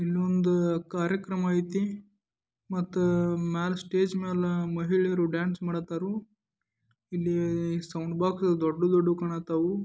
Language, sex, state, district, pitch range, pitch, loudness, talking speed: Kannada, male, Karnataka, Dharwad, 170-185 Hz, 175 Hz, -28 LUFS, 105 wpm